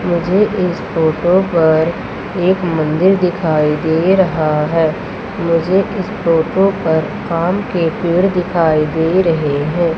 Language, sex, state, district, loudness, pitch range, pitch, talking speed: Hindi, female, Madhya Pradesh, Umaria, -15 LUFS, 160-185 Hz, 170 Hz, 125 wpm